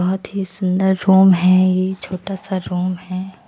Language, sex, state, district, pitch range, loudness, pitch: Hindi, female, Himachal Pradesh, Shimla, 185-190 Hz, -17 LUFS, 185 Hz